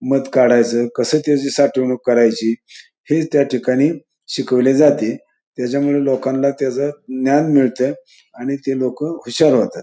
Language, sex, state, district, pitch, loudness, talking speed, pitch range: Marathi, male, Maharashtra, Pune, 135 Hz, -17 LUFS, 130 wpm, 125-145 Hz